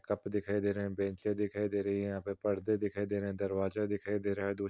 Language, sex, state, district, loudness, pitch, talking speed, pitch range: Hindi, male, Uttar Pradesh, Muzaffarnagar, -35 LUFS, 100 Hz, 295 wpm, 100-105 Hz